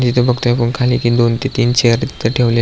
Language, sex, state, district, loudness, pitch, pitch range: Marathi, male, Maharashtra, Aurangabad, -14 LUFS, 120 Hz, 115-125 Hz